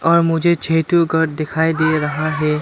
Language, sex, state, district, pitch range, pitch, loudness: Hindi, male, Arunachal Pradesh, Lower Dibang Valley, 155-165 Hz, 160 Hz, -17 LUFS